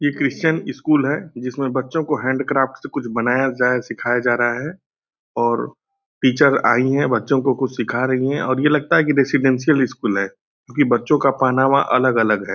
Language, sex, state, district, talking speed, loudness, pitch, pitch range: Hindi, male, Bihar, Purnia, 200 wpm, -18 LUFS, 130 Hz, 125-145 Hz